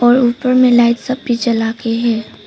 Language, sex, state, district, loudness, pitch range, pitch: Hindi, female, Arunachal Pradesh, Papum Pare, -14 LUFS, 230-250 Hz, 240 Hz